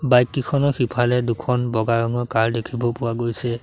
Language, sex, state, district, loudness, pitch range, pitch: Assamese, male, Assam, Sonitpur, -21 LUFS, 115-125 Hz, 120 Hz